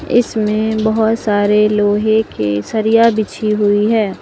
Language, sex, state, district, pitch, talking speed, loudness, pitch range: Hindi, female, Uttar Pradesh, Lucknow, 215 Hz, 130 wpm, -14 LUFS, 205-220 Hz